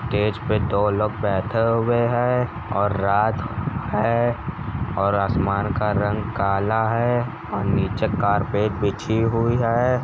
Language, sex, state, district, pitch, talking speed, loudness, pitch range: Hindi, male, Uttar Pradesh, Jalaun, 110 Hz, 130 wpm, -22 LUFS, 100-115 Hz